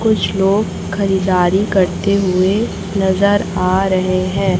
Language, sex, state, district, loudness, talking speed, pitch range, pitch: Hindi, female, Chhattisgarh, Raipur, -15 LUFS, 115 wpm, 185-200 Hz, 190 Hz